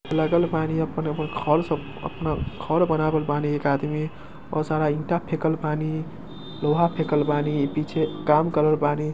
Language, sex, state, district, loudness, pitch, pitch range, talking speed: Angika, male, Bihar, Samastipur, -24 LUFS, 155 Hz, 150-160 Hz, 175 wpm